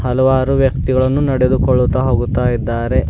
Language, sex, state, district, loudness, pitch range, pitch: Kannada, male, Karnataka, Bidar, -15 LUFS, 125-130 Hz, 130 Hz